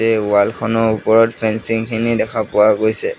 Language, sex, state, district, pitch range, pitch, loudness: Assamese, male, Assam, Sonitpur, 110-115 Hz, 110 Hz, -16 LUFS